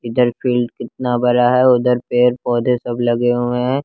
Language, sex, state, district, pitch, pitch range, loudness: Hindi, male, Bihar, West Champaran, 125 Hz, 120-125 Hz, -16 LUFS